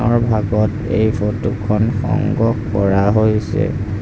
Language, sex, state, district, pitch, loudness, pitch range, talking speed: Assamese, male, Assam, Sonitpur, 110 Hz, -17 LUFS, 105-115 Hz, 105 wpm